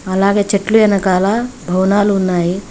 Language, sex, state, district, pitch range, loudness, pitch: Telugu, female, Telangana, Hyderabad, 185-205 Hz, -14 LUFS, 200 Hz